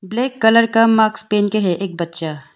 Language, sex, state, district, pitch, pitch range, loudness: Hindi, female, Arunachal Pradesh, Longding, 210 Hz, 175-225 Hz, -16 LUFS